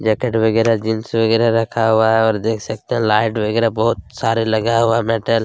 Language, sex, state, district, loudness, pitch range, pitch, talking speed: Hindi, male, Chhattisgarh, Kabirdham, -17 LUFS, 110-115 Hz, 115 Hz, 210 wpm